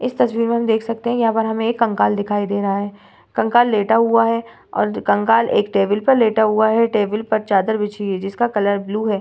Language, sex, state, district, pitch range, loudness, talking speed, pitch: Hindi, female, Bihar, Vaishali, 205-230 Hz, -18 LUFS, 245 wpm, 220 Hz